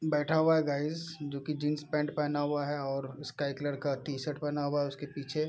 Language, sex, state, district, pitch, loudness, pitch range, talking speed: Hindi, male, Bihar, Araria, 145 Hz, -33 LUFS, 145-150 Hz, 230 wpm